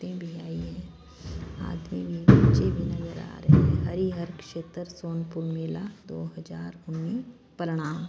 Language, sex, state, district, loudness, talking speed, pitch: Hindi, female, Punjab, Fazilka, -27 LUFS, 125 wpm, 145 Hz